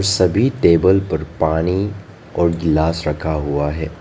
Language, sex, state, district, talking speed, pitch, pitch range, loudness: Hindi, male, Arunachal Pradesh, Lower Dibang Valley, 135 wpm, 85 Hz, 80-95 Hz, -17 LUFS